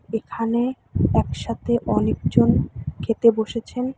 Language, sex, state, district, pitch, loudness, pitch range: Bengali, female, West Bengal, Alipurduar, 230 Hz, -22 LUFS, 225-245 Hz